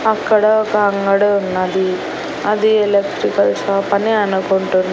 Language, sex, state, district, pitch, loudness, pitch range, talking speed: Telugu, female, Andhra Pradesh, Annamaya, 200 Hz, -15 LUFS, 190-210 Hz, 110 wpm